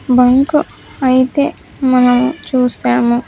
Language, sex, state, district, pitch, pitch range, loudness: Telugu, female, Andhra Pradesh, Sri Satya Sai, 255 Hz, 250-270 Hz, -13 LUFS